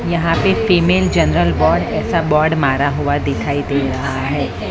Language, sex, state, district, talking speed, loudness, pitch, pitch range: Hindi, female, Maharashtra, Mumbai Suburban, 165 wpm, -16 LUFS, 145 Hz, 140-160 Hz